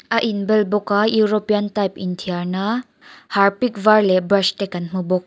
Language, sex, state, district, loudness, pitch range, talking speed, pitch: Mizo, female, Mizoram, Aizawl, -19 LUFS, 185-215 Hz, 205 wpm, 205 Hz